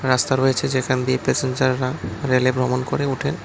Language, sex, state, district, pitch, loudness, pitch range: Bengali, male, Tripura, West Tripura, 130 Hz, -20 LUFS, 130-135 Hz